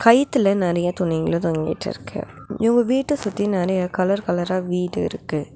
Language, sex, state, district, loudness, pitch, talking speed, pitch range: Tamil, female, Tamil Nadu, Nilgiris, -21 LUFS, 185 Hz, 130 wpm, 175-220 Hz